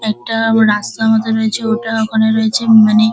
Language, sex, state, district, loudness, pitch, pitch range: Bengali, female, West Bengal, Dakshin Dinajpur, -13 LUFS, 220 Hz, 220-225 Hz